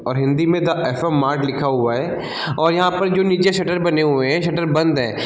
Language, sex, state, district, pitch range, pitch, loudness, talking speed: Hindi, male, Bihar, East Champaran, 135-175 Hz, 160 Hz, -18 LUFS, 240 wpm